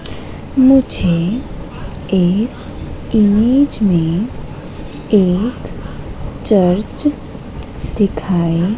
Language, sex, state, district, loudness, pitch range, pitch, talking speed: Hindi, female, Madhya Pradesh, Katni, -15 LUFS, 180-230 Hz, 205 Hz, 50 wpm